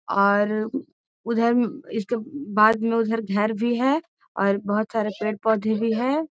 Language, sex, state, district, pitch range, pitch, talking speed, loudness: Magahi, female, Bihar, Gaya, 215-240 Hz, 225 Hz, 150 wpm, -23 LUFS